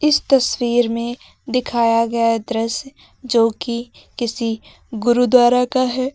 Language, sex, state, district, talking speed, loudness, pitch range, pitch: Hindi, female, Uttar Pradesh, Lucknow, 115 wpm, -18 LUFS, 230-255 Hz, 240 Hz